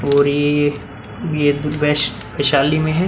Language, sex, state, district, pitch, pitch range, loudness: Hindi, male, Bihar, Vaishali, 145 Hz, 140-150 Hz, -17 LUFS